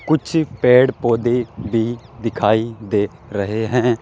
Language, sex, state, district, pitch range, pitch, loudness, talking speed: Hindi, male, Rajasthan, Jaipur, 110-125 Hz, 120 Hz, -18 LUFS, 120 wpm